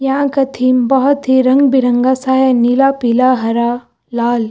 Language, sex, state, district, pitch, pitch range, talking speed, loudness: Hindi, female, Uttar Pradesh, Lucknow, 260 Hz, 245-270 Hz, 175 wpm, -13 LUFS